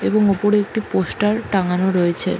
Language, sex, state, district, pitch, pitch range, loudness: Bengali, female, West Bengal, Jalpaiguri, 200 Hz, 185-210 Hz, -18 LUFS